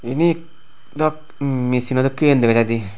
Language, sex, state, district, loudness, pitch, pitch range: Chakma, male, Tripura, Unakoti, -18 LUFS, 135 Hz, 125-155 Hz